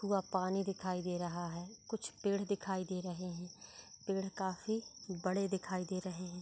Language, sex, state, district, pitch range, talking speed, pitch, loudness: Hindi, female, Maharashtra, Dhule, 180-195 Hz, 180 wpm, 185 Hz, -39 LUFS